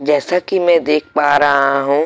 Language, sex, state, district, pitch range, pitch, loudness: Hindi, male, Goa, North and South Goa, 145-170 Hz, 150 Hz, -14 LUFS